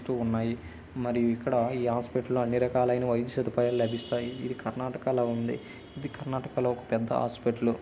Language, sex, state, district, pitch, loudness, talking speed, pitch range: Telugu, male, Karnataka, Gulbarga, 120 Hz, -30 LUFS, 160 wpm, 115-125 Hz